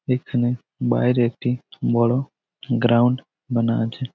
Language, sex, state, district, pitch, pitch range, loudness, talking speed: Bengali, male, West Bengal, Jhargram, 120 Hz, 115-125 Hz, -21 LUFS, 100 wpm